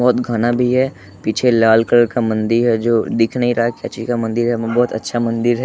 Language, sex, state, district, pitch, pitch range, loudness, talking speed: Hindi, male, Bihar, West Champaran, 120 Hz, 115-120 Hz, -16 LUFS, 245 wpm